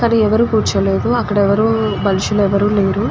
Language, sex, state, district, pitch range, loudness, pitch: Telugu, female, Andhra Pradesh, Guntur, 195-220 Hz, -15 LUFS, 205 Hz